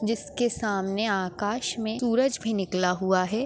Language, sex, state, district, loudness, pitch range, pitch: Hindi, female, Maharashtra, Pune, -27 LUFS, 190-230 Hz, 215 Hz